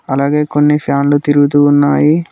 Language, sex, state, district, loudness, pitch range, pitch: Telugu, male, Telangana, Mahabubabad, -11 LUFS, 145-150 Hz, 145 Hz